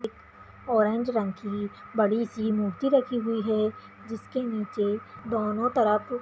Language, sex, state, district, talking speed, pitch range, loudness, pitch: Hindi, female, Bihar, Kishanganj, 145 wpm, 210-235 Hz, -27 LUFS, 220 Hz